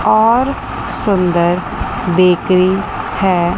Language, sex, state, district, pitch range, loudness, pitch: Hindi, female, Chandigarh, Chandigarh, 180-200 Hz, -14 LUFS, 185 Hz